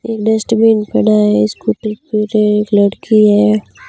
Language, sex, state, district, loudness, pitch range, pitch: Hindi, female, Rajasthan, Bikaner, -13 LUFS, 205-220 Hz, 210 Hz